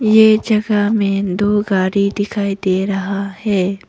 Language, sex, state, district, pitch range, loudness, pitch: Hindi, female, Arunachal Pradesh, Papum Pare, 195-210 Hz, -16 LUFS, 200 Hz